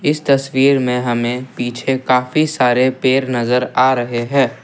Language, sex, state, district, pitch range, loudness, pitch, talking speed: Hindi, male, Assam, Kamrup Metropolitan, 125-135 Hz, -16 LUFS, 130 Hz, 155 wpm